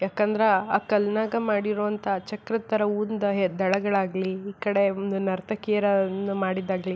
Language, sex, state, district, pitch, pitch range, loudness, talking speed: Kannada, female, Karnataka, Belgaum, 200 Hz, 195-210 Hz, -25 LUFS, 130 wpm